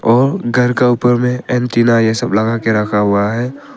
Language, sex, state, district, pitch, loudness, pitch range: Hindi, male, Arunachal Pradesh, Papum Pare, 120 Hz, -14 LUFS, 110-125 Hz